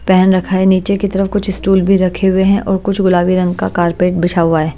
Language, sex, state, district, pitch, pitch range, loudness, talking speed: Hindi, female, Haryana, Jhajjar, 190 Hz, 180-195 Hz, -13 LUFS, 265 wpm